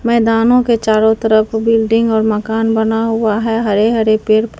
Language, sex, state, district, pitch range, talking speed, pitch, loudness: Hindi, female, Bihar, Katihar, 220-225 Hz, 170 wpm, 225 Hz, -13 LUFS